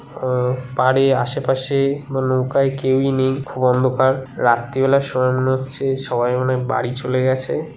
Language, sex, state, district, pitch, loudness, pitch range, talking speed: Bengali, male, West Bengal, Kolkata, 130 Hz, -19 LUFS, 130-135 Hz, 140 wpm